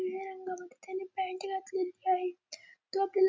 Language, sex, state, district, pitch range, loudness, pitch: Marathi, female, Maharashtra, Dhule, 365-385 Hz, -36 LUFS, 375 Hz